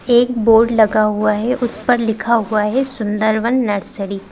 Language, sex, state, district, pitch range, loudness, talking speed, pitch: Hindi, female, Madhya Pradesh, Bhopal, 210-240 Hz, -16 LUFS, 180 wpm, 220 Hz